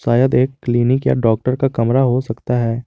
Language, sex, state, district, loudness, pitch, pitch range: Hindi, male, Jharkhand, Garhwa, -16 LUFS, 125 Hz, 115-130 Hz